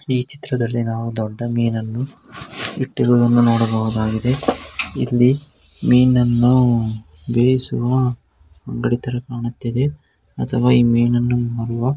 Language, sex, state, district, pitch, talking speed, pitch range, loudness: Kannada, male, Karnataka, Gulbarga, 120 Hz, 85 wpm, 115-125 Hz, -19 LUFS